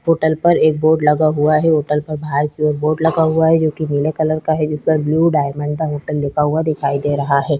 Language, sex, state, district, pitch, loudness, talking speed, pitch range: Hindi, female, Chhattisgarh, Korba, 155 Hz, -16 LUFS, 260 wpm, 150-160 Hz